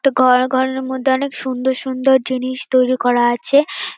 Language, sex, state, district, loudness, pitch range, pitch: Bengali, female, West Bengal, North 24 Parganas, -16 LUFS, 255-265 Hz, 260 Hz